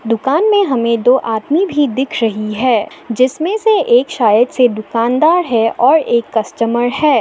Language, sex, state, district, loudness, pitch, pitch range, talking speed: Hindi, female, Assam, Sonitpur, -13 LUFS, 245 Hz, 230-290 Hz, 165 wpm